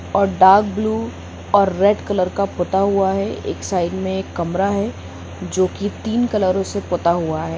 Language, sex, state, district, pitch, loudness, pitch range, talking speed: Hindi, female, Jharkhand, Sahebganj, 195 Hz, -18 LUFS, 175-200 Hz, 190 wpm